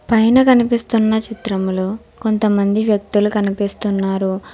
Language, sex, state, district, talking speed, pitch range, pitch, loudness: Telugu, female, Telangana, Hyderabad, 80 wpm, 200-225 Hz, 210 Hz, -17 LUFS